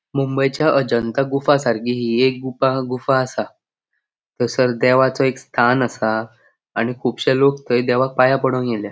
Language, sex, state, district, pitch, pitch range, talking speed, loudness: Konkani, male, Goa, North and South Goa, 130 Hz, 120-135 Hz, 150 wpm, -18 LUFS